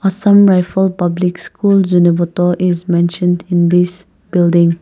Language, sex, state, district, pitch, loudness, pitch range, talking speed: English, female, Nagaland, Kohima, 180 Hz, -13 LUFS, 175-185 Hz, 125 wpm